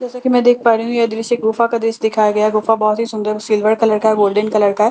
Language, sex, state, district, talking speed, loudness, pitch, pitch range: Hindi, female, Bihar, Katihar, 340 wpm, -15 LUFS, 220 Hz, 215-230 Hz